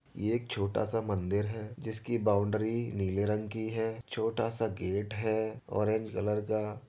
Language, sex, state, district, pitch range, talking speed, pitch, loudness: Hindi, male, Uttar Pradesh, Jyotiba Phule Nagar, 105-110 Hz, 165 wpm, 110 Hz, -33 LUFS